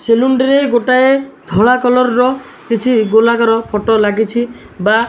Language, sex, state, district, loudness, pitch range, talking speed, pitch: Odia, male, Odisha, Malkangiri, -12 LUFS, 225-255 Hz, 140 wpm, 240 Hz